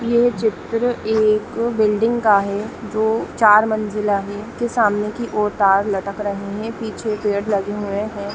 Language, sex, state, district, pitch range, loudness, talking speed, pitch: Hindi, female, Bihar, Lakhisarai, 205-225 Hz, -19 LUFS, 165 wpm, 215 Hz